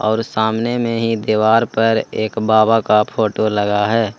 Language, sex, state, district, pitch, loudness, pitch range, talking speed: Hindi, male, Jharkhand, Ranchi, 110 Hz, -16 LUFS, 110-115 Hz, 170 wpm